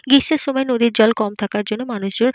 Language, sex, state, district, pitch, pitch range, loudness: Bengali, female, Jharkhand, Jamtara, 235 Hz, 215-265 Hz, -18 LUFS